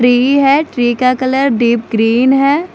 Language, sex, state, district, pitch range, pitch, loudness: Hindi, female, Chandigarh, Chandigarh, 240-275 Hz, 255 Hz, -12 LUFS